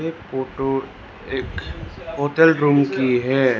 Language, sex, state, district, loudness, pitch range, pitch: Hindi, male, Arunachal Pradesh, Lower Dibang Valley, -20 LUFS, 130-145 Hz, 135 Hz